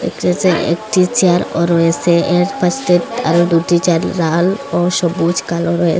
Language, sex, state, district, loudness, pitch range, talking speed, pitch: Bengali, female, Assam, Hailakandi, -14 LUFS, 170-180 Hz, 160 wpm, 175 Hz